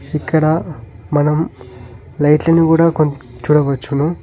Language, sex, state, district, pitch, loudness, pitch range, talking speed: Telugu, male, Telangana, Hyderabad, 150 Hz, -15 LUFS, 125-160 Hz, 85 wpm